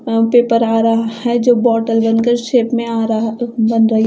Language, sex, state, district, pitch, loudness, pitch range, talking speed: Hindi, female, Punjab, Fazilka, 230 Hz, -14 LUFS, 225-240 Hz, 235 wpm